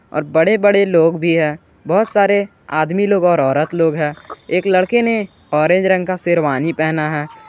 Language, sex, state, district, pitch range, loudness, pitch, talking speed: Hindi, male, Jharkhand, Garhwa, 155-200 Hz, -15 LUFS, 170 Hz, 185 wpm